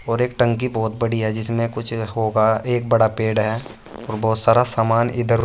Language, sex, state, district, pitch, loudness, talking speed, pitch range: Hindi, male, Uttar Pradesh, Saharanpur, 115 Hz, -20 LUFS, 210 wpm, 110-115 Hz